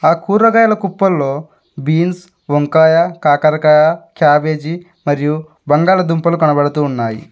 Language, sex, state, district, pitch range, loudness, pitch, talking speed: Telugu, male, Telangana, Mahabubabad, 145-175 Hz, -13 LUFS, 160 Hz, 90 wpm